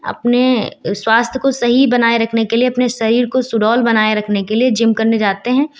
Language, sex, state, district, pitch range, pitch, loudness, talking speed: Hindi, female, Uttar Pradesh, Lucknow, 225-250 Hz, 235 Hz, -14 LUFS, 205 wpm